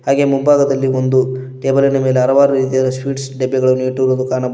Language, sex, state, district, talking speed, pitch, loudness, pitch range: Kannada, male, Karnataka, Koppal, 170 wpm, 130 Hz, -15 LUFS, 130-135 Hz